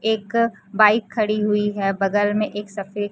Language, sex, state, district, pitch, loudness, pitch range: Hindi, female, Chhattisgarh, Raipur, 210 Hz, -20 LUFS, 205-215 Hz